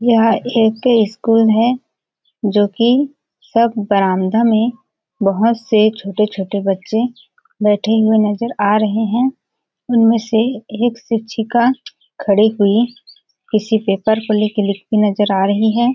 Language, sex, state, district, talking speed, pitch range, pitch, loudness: Hindi, female, Chhattisgarh, Balrampur, 130 wpm, 210-235 Hz, 220 Hz, -15 LUFS